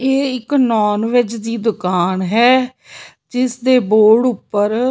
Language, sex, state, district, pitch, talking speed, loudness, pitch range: Punjabi, female, Punjab, Pathankot, 235 Hz, 145 wpm, -15 LUFS, 215-255 Hz